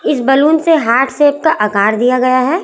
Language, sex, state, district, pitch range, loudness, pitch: Hindi, female, Chhattisgarh, Raipur, 250-310 Hz, -12 LUFS, 270 Hz